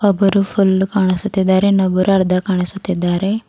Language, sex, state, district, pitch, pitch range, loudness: Kannada, female, Karnataka, Bidar, 190 Hz, 185-195 Hz, -15 LUFS